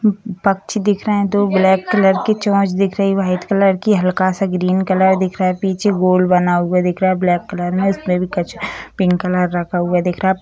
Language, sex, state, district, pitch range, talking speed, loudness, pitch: Hindi, female, Bihar, Sitamarhi, 180-195 Hz, 230 wpm, -16 LUFS, 190 Hz